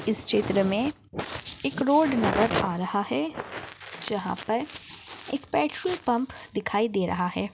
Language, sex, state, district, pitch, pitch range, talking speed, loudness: Hindi, female, Chhattisgarh, Bastar, 220 Hz, 200-275 Hz, 145 wpm, -26 LUFS